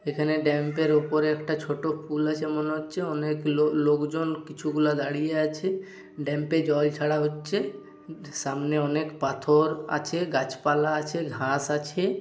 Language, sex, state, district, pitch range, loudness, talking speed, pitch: Bengali, male, West Bengal, Purulia, 150-155 Hz, -27 LUFS, 135 wpm, 150 Hz